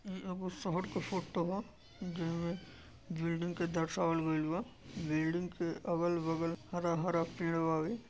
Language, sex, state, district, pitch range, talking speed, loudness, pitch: Bhojpuri, male, Uttar Pradesh, Deoria, 165-180 Hz, 165 wpm, -37 LUFS, 170 Hz